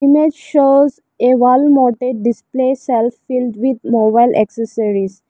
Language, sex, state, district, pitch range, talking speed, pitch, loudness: English, female, Arunachal Pradesh, Lower Dibang Valley, 230-265 Hz, 125 wpm, 250 Hz, -14 LUFS